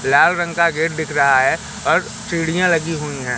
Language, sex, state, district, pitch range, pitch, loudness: Hindi, male, Madhya Pradesh, Katni, 150-170 Hz, 165 Hz, -17 LUFS